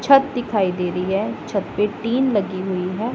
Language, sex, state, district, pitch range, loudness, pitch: Hindi, female, Punjab, Pathankot, 185-240 Hz, -21 LUFS, 205 Hz